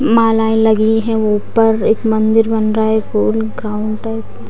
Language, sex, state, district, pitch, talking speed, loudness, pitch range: Hindi, female, Bihar, Purnia, 220 Hz, 175 wpm, -14 LUFS, 215-225 Hz